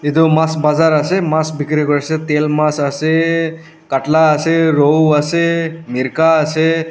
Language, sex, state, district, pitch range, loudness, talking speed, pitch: Nagamese, male, Nagaland, Dimapur, 150-160 Hz, -14 LUFS, 140 wpm, 155 Hz